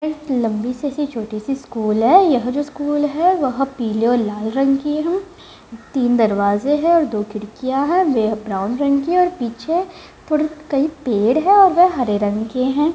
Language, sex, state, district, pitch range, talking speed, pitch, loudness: Hindi, female, Bihar, Jamui, 230-310 Hz, 200 wpm, 275 Hz, -18 LUFS